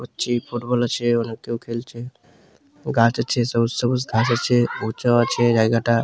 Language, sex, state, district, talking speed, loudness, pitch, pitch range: Bengali, male, West Bengal, Malda, 150 wpm, -21 LUFS, 120 Hz, 115-120 Hz